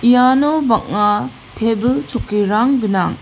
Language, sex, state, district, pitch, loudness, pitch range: Garo, female, Meghalaya, West Garo Hills, 225 Hz, -16 LUFS, 205-250 Hz